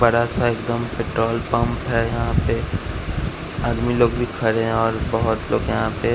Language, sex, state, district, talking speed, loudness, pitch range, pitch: Hindi, male, Bihar, West Champaran, 175 wpm, -21 LUFS, 115-120 Hz, 115 Hz